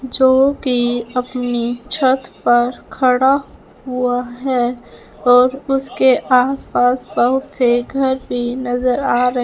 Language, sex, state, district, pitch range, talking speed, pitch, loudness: Hindi, female, Punjab, Fazilka, 245-260 Hz, 115 wpm, 250 Hz, -16 LUFS